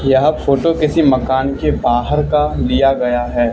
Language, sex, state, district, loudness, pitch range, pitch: Hindi, male, Haryana, Charkhi Dadri, -15 LUFS, 130-150 Hz, 135 Hz